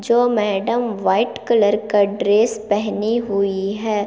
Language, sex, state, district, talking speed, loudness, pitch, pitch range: Hindi, female, Chhattisgarh, Kabirdham, 135 wpm, -18 LUFS, 210 Hz, 205-225 Hz